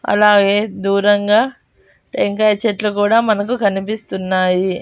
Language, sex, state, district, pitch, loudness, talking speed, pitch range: Telugu, female, Andhra Pradesh, Annamaya, 205 Hz, -15 LUFS, 85 wpm, 195-215 Hz